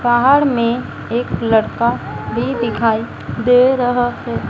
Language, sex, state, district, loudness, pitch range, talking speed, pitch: Hindi, female, Madhya Pradesh, Dhar, -16 LUFS, 235-250 Hz, 120 wpm, 240 Hz